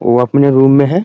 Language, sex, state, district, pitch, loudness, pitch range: Hindi, male, Bihar, Muzaffarpur, 135 Hz, -10 LUFS, 125-140 Hz